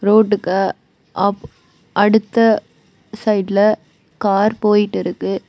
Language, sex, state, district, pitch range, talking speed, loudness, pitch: Tamil, female, Tamil Nadu, Kanyakumari, 195-215 Hz, 65 wpm, -17 LUFS, 205 Hz